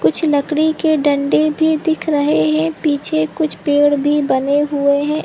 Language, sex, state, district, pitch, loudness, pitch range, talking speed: Hindi, female, Chhattisgarh, Rajnandgaon, 290 Hz, -16 LUFS, 280-310 Hz, 180 wpm